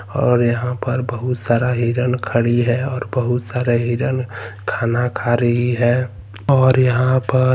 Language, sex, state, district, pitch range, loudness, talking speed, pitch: Hindi, male, Jharkhand, Ranchi, 120-125 Hz, -18 LUFS, 150 wpm, 120 Hz